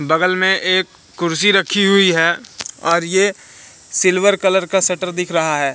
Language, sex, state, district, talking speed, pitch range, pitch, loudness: Hindi, male, Madhya Pradesh, Katni, 165 wpm, 165-190 Hz, 180 Hz, -15 LUFS